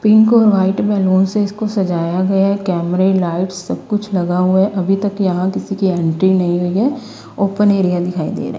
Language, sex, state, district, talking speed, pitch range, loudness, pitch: Hindi, female, Himachal Pradesh, Shimla, 210 wpm, 180-205 Hz, -15 LUFS, 190 Hz